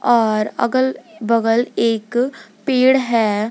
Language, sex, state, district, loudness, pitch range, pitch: Hindi, female, Jharkhand, Garhwa, -17 LUFS, 220-255 Hz, 230 Hz